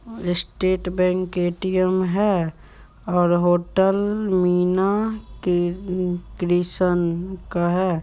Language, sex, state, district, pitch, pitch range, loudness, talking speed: Hindi, male, Bihar, Supaul, 180 Hz, 175-190 Hz, -21 LUFS, 80 wpm